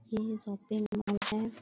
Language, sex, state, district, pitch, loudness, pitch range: Hindi, female, Chhattisgarh, Bilaspur, 215 Hz, -34 LUFS, 205-220 Hz